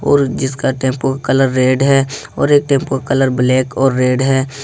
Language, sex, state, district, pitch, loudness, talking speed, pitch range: Hindi, male, Jharkhand, Ranchi, 135 Hz, -14 LUFS, 195 wpm, 130-140 Hz